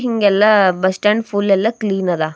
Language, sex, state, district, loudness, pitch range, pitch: Kannada, female, Karnataka, Bidar, -15 LUFS, 190-215 Hz, 205 Hz